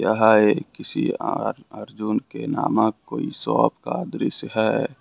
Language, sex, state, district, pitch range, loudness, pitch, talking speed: Hindi, male, Jharkhand, Ranchi, 105-110 Hz, -22 LUFS, 110 Hz, 145 wpm